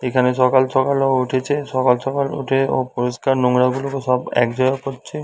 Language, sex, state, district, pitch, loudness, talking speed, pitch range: Bengali, male, West Bengal, Dakshin Dinajpur, 130 Hz, -18 LUFS, 170 wpm, 125-135 Hz